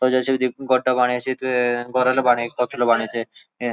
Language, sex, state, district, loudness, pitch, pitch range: Garhwali, male, Uttarakhand, Uttarkashi, -20 LUFS, 125 Hz, 120-130 Hz